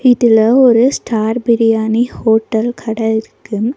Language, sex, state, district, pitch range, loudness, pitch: Tamil, female, Tamil Nadu, Nilgiris, 220-240 Hz, -13 LUFS, 225 Hz